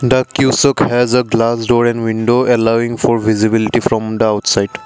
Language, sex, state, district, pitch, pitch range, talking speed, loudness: English, male, Assam, Kamrup Metropolitan, 115 Hz, 110-125 Hz, 160 wpm, -13 LUFS